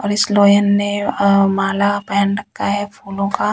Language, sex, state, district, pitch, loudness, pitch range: Hindi, female, Delhi, New Delhi, 200 Hz, -16 LUFS, 200-205 Hz